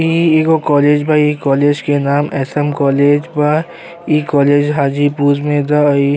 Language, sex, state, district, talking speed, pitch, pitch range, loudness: Bhojpuri, male, Uttar Pradesh, Deoria, 175 wpm, 145 Hz, 145-150 Hz, -13 LUFS